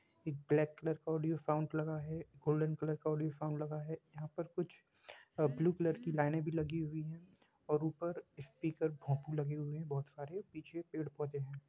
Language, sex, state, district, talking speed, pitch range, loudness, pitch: Hindi, male, Jharkhand, Jamtara, 205 wpm, 150-160 Hz, -40 LUFS, 155 Hz